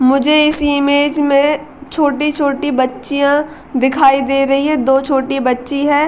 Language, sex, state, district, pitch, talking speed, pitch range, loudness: Hindi, female, Uttar Pradesh, Gorakhpur, 285 Hz, 140 wpm, 270-295 Hz, -14 LUFS